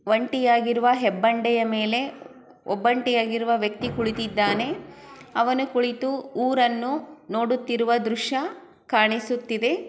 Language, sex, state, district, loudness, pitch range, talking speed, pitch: Kannada, female, Karnataka, Chamarajanagar, -23 LUFS, 225-255 Hz, 75 wpm, 235 Hz